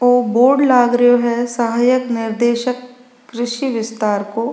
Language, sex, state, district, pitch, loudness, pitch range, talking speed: Rajasthani, female, Rajasthan, Nagaur, 240 Hz, -16 LUFS, 235-250 Hz, 130 wpm